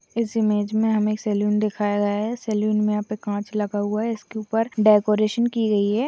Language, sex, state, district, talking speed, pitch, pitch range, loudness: Hindi, female, Maharashtra, Chandrapur, 215 wpm, 215 Hz, 210-220 Hz, -22 LUFS